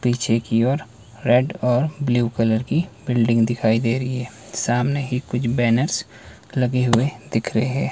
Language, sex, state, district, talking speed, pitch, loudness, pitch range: Hindi, male, Himachal Pradesh, Shimla, 160 wpm, 120 Hz, -21 LUFS, 115-130 Hz